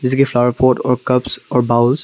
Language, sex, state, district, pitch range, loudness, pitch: Hindi, male, Arunachal Pradesh, Papum Pare, 120-130 Hz, -15 LUFS, 125 Hz